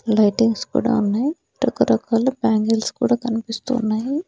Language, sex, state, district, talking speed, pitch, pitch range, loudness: Telugu, female, Andhra Pradesh, Annamaya, 110 wpm, 230 Hz, 220-250 Hz, -20 LUFS